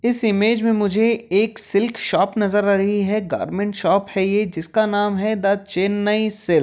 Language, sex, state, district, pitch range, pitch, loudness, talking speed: Hindi, male, Uttar Pradesh, Jyotiba Phule Nagar, 200-220 Hz, 205 Hz, -19 LUFS, 200 wpm